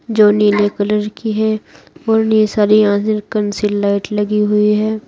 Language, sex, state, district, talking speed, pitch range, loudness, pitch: Hindi, female, Uttar Pradesh, Saharanpur, 175 wpm, 205-215 Hz, -15 LUFS, 210 Hz